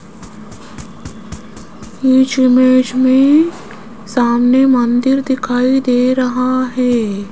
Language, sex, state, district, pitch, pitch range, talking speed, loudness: Hindi, female, Rajasthan, Jaipur, 255 Hz, 235-260 Hz, 75 wpm, -13 LUFS